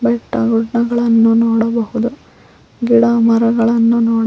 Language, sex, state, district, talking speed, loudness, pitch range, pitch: Kannada, female, Karnataka, Koppal, 85 wpm, -14 LUFS, 225-235 Hz, 230 Hz